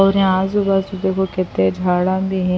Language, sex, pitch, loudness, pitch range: Urdu, female, 190 Hz, -18 LUFS, 185-195 Hz